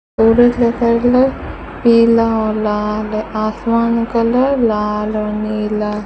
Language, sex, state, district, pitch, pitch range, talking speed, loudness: Hindi, female, Rajasthan, Bikaner, 225 Hz, 215-235 Hz, 140 wpm, -15 LUFS